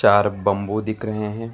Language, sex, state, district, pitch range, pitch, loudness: Hindi, male, Karnataka, Bangalore, 100-110 Hz, 105 Hz, -22 LUFS